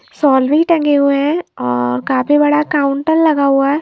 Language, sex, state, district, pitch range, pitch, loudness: Hindi, female, Himachal Pradesh, Shimla, 275-300 Hz, 285 Hz, -14 LUFS